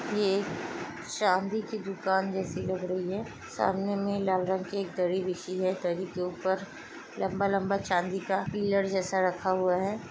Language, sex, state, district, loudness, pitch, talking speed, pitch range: Hindi, female, Bihar, Lakhisarai, -30 LUFS, 190 Hz, 170 wpm, 185-200 Hz